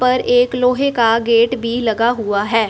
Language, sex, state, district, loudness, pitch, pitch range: Hindi, female, Punjab, Fazilka, -15 LUFS, 235 Hz, 225-250 Hz